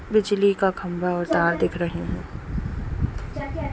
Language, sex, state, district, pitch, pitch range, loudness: Hindi, female, Bihar, East Champaran, 175 Hz, 170-195 Hz, -25 LUFS